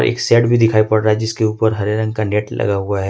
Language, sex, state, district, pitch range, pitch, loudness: Hindi, male, Jharkhand, Ranchi, 105-110 Hz, 110 Hz, -16 LUFS